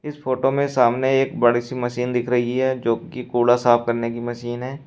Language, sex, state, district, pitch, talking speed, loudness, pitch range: Hindi, male, Uttar Pradesh, Shamli, 125 Hz, 235 wpm, -20 LUFS, 120-130 Hz